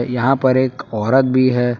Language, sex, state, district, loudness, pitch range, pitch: Hindi, male, Jharkhand, Palamu, -16 LUFS, 120-130 Hz, 130 Hz